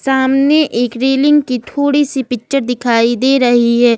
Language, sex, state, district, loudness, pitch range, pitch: Hindi, female, Jharkhand, Ranchi, -13 LUFS, 240-275 Hz, 260 Hz